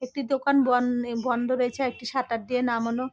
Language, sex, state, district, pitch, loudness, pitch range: Bengali, female, West Bengal, North 24 Parganas, 250 Hz, -26 LUFS, 240-260 Hz